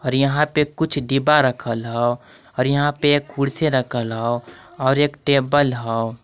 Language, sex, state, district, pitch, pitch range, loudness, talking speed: Magahi, male, Jharkhand, Palamu, 135 Hz, 120-145 Hz, -19 LUFS, 175 wpm